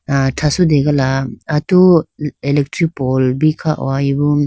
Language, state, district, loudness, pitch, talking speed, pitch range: Idu Mishmi, Arunachal Pradesh, Lower Dibang Valley, -15 LUFS, 145 Hz, 120 wpm, 135-155 Hz